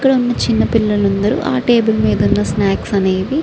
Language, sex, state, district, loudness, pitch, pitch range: Telugu, female, Andhra Pradesh, Srikakulam, -15 LUFS, 220 Hz, 200-245 Hz